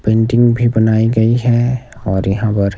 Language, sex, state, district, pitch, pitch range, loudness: Hindi, male, Himachal Pradesh, Shimla, 110 Hz, 110-120 Hz, -14 LUFS